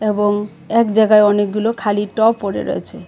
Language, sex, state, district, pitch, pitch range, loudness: Bengali, female, Tripura, West Tripura, 210 Hz, 205-220 Hz, -16 LUFS